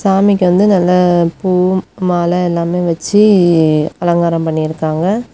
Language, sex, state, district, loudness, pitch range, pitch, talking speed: Tamil, female, Tamil Nadu, Kanyakumari, -12 LUFS, 170-190 Hz, 175 Hz, 110 wpm